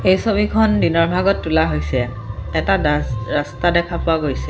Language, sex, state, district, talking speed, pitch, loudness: Assamese, female, Assam, Sonitpur, 160 wpm, 150 Hz, -18 LUFS